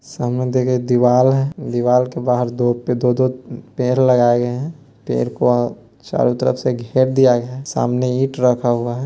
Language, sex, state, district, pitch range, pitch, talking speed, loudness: Hindi, male, Bihar, Muzaffarpur, 120-130 Hz, 125 Hz, 190 wpm, -17 LUFS